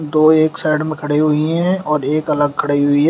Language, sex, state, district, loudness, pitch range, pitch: Hindi, male, Uttar Pradesh, Shamli, -16 LUFS, 150-155 Hz, 155 Hz